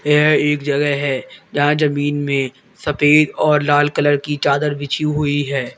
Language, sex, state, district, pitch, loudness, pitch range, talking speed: Hindi, male, Uttar Pradesh, Lalitpur, 145 Hz, -17 LUFS, 145-150 Hz, 165 wpm